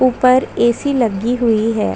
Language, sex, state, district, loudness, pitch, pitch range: Hindi, female, Chhattisgarh, Bastar, -15 LUFS, 235 Hz, 225-255 Hz